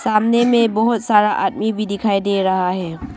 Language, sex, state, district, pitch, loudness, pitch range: Hindi, female, Arunachal Pradesh, Longding, 210 Hz, -17 LUFS, 195-225 Hz